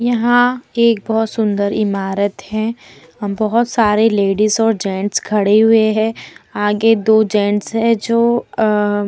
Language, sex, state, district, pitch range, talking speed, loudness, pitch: Hindi, female, Bihar, Vaishali, 205-225 Hz, 140 wpm, -15 LUFS, 215 Hz